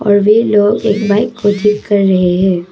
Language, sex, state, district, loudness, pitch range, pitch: Hindi, female, Arunachal Pradesh, Papum Pare, -12 LUFS, 195-210 Hz, 205 Hz